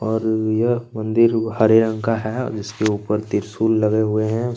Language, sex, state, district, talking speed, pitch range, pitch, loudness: Hindi, male, Chhattisgarh, Kabirdham, 185 wpm, 110-115 Hz, 110 Hz, -19 LUFS